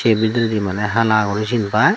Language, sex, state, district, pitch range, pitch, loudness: Chakma, female, Tripura, Dhalai, 105-115 Hz, 110 Hz, -18 LUFS